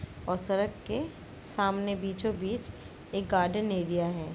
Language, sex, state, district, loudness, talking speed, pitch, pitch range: Hindi, female, Uttar Pradesh, Jalaun, -32 LUFS, 150 wpm, 195 Hz, 180-200 Hz